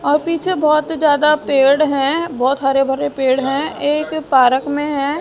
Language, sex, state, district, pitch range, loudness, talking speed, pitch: Hindi, female, Haryana, Jhajjar, 270-305 Hz, -16 LUFS, 175 wpm, 290 Hz